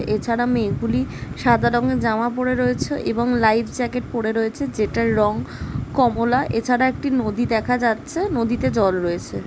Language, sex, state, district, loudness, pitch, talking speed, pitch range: Bengali, female, West Bengal, Jhargram, -21 LUFS, 235 Hz, 150 wpm, 220-250 Hz